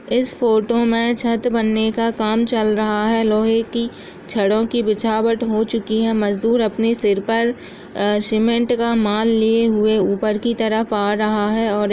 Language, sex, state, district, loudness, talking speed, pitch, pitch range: Hindi, female, Bihar, Bhagalpur, -18 LUFS, 180 wpm, 225 Hz, 215-230 Hz